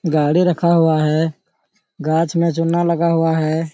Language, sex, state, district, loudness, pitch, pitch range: Hindi, male, Jharkhand, Sahebganj, -17 LUFS, 165 Hz, 160-170 Hz